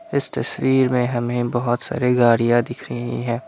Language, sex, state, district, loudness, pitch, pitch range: Hindi, male, Assam, Kamrup Metropolitan, -20 LUFS, 120 Hz, 120-130 Hz